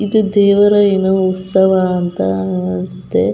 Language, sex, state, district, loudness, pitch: Kannada, female, Karnataka, Chamarajanagar, -14 LUFS, 185 Hz